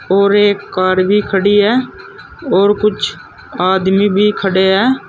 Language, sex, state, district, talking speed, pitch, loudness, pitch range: Hindi, male, Uttar Pradesh, Saharanpur, 140 wpm, 200 Hz, -13 LUFS, 190-205 Hz